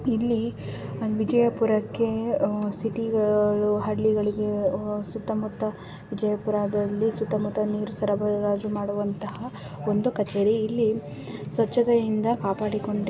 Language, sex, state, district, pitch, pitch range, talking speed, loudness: Kannada, female, Karnataka, Bijapur, 210 Hz, 205-220 Hz, 85 wpm, -26 LUFS